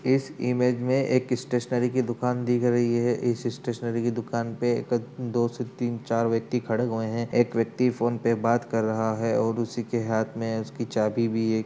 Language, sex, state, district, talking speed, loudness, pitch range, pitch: Hindi, male, Uttar Pradesh, Budaun, 200 wpm, -26 LUFS, 115-125 Hz, 120 Hz